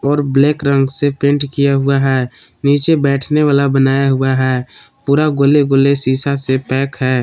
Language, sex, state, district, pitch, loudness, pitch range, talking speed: Hindi, male, Jharkhand, Palamu, 140 Hz, -14 LUFS, 135-140 Hz, 175 wpm